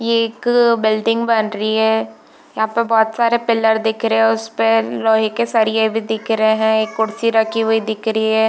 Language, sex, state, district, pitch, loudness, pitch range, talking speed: Hindi, female, Chhattisgarh, Bilaspur, 225 Hz, -16 LUFS, 220-230 Hz, 205 wpm